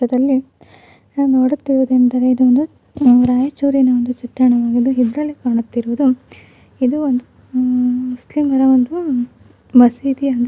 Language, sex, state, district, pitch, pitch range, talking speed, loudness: Kannada, female, Karnataka, Raichur, 255 Hz, 245-270 Hz, 95 wpm, -15 LUFS